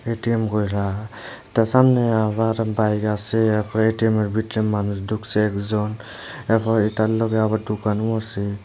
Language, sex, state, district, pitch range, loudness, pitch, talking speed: Bengali, male, Tripura, Unakoti, 105-110 Hz, -21 LUFS, 110 Hz, 125 wpm